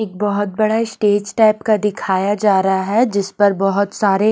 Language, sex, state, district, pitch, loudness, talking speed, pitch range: Hindi, female, Punjab, Pathankot, 205 Hz, -16 LUFS, 195 wpm, 195-215 Hz